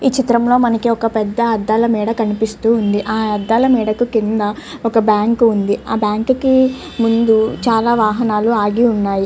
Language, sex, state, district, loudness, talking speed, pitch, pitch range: Telugu, female, Andhra Pradesh, Chittoor, -15 LUFS, 160 wpm, 225 Hz, 215-235 Hz